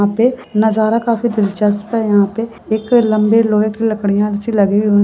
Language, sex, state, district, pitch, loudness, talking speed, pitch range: Hindi, female, Bihar, Araria, 215 Hz, -15 LUFS, 190 wpm, 205-225 Hz